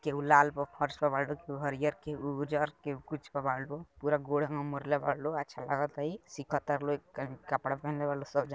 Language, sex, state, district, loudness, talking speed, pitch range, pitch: Bhojpuri, male, Bihar, Gopalganj, -33 LUFS, 220 wpm, 140-150 Hz, 145 Hz